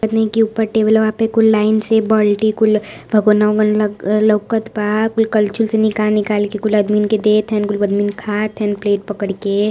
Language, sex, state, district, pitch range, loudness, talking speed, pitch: Hindi, female, Uttar Pradesh, Varanasi, 210-220 Hz, -15 LUFS, 200 wpm, 215 Hz